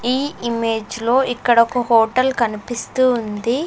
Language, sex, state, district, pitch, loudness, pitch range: Telugu, female, Andhra Pradesh, Sri Satya Sai, 240 Hz, -18 LUFS, 230-255 Hz